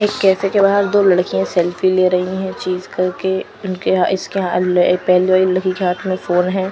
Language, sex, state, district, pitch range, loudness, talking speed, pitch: Hindi, female, Maharashtra, Washim, 180-190 Hz, -16 LUFS, 215 wpm, 185 Hz